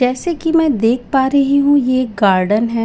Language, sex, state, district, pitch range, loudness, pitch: Hindi, female, Bihar, Katihar, 230-280 Hz, -14 LUFS, 255 Hz